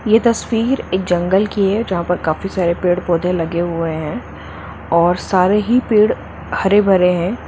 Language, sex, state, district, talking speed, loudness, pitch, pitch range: Hindi, female, Jharkhand, Jamtara, 175 wpm, -16 LUFS, 180 Hz, 170-210 Hz